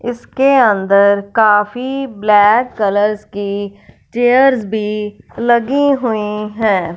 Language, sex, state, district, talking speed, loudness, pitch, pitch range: Hindi, female, Punjab, Fazilka, 95 wpm, -14 LUFS, 215 Hz, 205-245 Hz